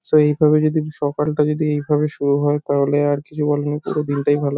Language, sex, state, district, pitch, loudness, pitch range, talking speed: Bengali, male, West Bengal, North 24 Parganas, 150 Hz, -19 LUFS, 145-150 Hz, 225 wpm